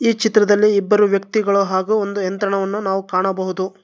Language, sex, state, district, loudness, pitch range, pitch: Kannada, male, Karnataka, Bangalore, -17 LUFS, 195-210 Hz, 200 Hz